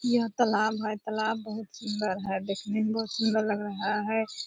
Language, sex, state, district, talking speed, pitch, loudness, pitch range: Hindi, female, Bihar, Purnia, 185 wpm, 215 Hz, -29 LUFS, 210-220 Hz